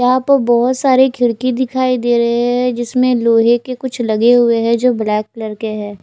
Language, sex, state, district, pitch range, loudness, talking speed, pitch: Hindi, female, Maharashtra, Gondia, 230-255 Hz, -14 LUFS, 210 wpm, 240 Hz